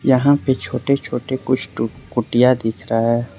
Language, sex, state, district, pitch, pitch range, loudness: Hindi, male, Arunachal Pradesh, Lower Dibang Valley, 120 Hz, 115-130 Hz, -19 LUFS